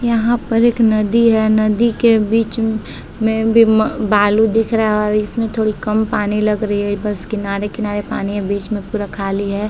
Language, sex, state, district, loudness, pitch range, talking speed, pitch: Hindi, female, Bihar, Saharsa, -16 LUFS, 205-225 Hz, 200 wpm, 215 Hz